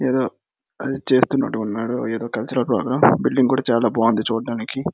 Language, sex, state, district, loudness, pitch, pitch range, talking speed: Telugu, male, Andhra Pradesh, Srikakulam, -20 LUFS, 115 Hz, 115-130 Hz, 145 wpm